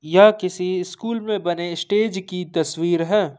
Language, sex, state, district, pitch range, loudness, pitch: Hindi, male, Jharkhand, Ranchi, 170-210 Hz, -21 LUFS, 185 Hz